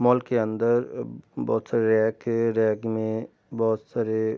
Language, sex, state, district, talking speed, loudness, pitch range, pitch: Hindi, male, Bihar, Darbhanga, 165 wpm, -25 LUFS, 110-115 Hz, 110 Hz